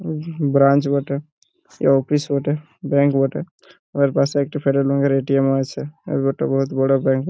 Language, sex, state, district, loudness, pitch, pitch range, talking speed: Bengali, male, West Bengal, Purulia, -19 LUFS, 140 Hz, 135-145 Hz, 180 wpm